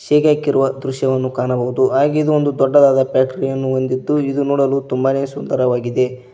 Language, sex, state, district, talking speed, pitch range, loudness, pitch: Kannada, male, Karnataka, Koppal, 125 wpm, 130-140 Hz, -16 LUFS, 135 Hz